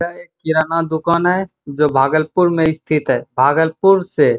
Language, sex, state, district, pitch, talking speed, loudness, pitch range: Hindi, male, Bihar, Bhagalpur, 160 Hz, 175 wpm, -16 LUFS, 155-175 Hz